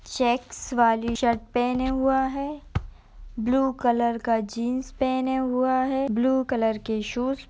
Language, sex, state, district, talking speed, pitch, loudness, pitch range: Hindi, female, Uttar Pradesh, Etah, 160 wpm, 250 Hz, -25 LUFS, 235-265 Hz